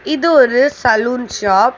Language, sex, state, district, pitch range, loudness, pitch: Tamil, female, Tamil Nadu, Chennai, 225-285 Hz, -13 LUFS, 250 Hz